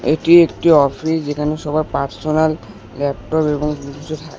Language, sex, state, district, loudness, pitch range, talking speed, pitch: Bengali, male, West Bengal, Alipurduar, -16 LUFS, 140-155 Hz, 125 wpm, 150 Hz